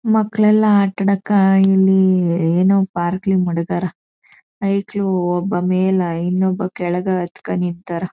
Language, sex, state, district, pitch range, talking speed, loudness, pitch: Kannada, female, Karnataka, Chamarajanagar, 175-195 Hz, 110 wpm, -17 LUFS, 185 Hz